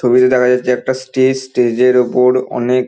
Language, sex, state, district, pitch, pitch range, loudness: Bengali, male, West Bengal, North 24 Parganas, 125 Hz, 125-130 Hz, -13 LUFS